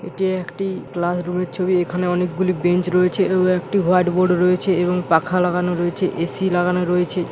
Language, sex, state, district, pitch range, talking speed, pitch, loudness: Bengali, male, West Bengal, Paschim Medinipur, 180-185 Hz, 170 wpm, 180 Hz, -19 LUFS